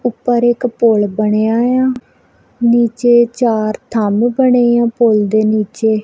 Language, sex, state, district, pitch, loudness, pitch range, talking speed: Punjabi, female, Punjab, Kapurthala, 235 Hz, -13 LUFS, 215-240 Hz, 130 wpm